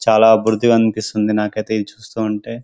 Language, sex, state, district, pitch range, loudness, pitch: Telugu, male, Telangana, Karimnagar, 105-110 Hz, -16 LUFS, 110 Hz